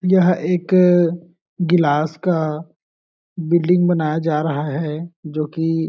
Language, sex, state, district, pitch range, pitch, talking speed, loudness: Hindi, male, Chhattisgarh, Balrampur, 155-175 Hz, 165 Hz, 120 wpm, -18 LUFS